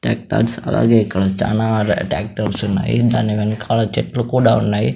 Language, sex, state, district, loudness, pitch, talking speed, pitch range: Telugu, female, Andhra Pradesh, Sri Satya Sai, -17 LUFS, 110 Hz, 135 wpm, 105-115 Hz